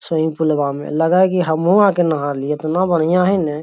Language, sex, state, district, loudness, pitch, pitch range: Magahi, male, Bihar, Lakhisarai, -16 LUFS, 160 Hz, 150-180 Hz